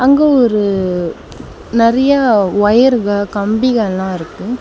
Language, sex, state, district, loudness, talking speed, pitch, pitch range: Tamil, female, Tamil Nadu, Chennai, -13 LUFS, 80 wpm, 215 Hz, 200-250 Hz